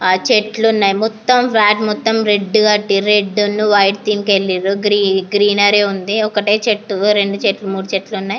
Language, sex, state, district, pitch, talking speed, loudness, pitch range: Telugu, female, Andhra Pradesh, Anantapur, 205 Hz, 100 wpm, -14 LUFS, 195-215 Hz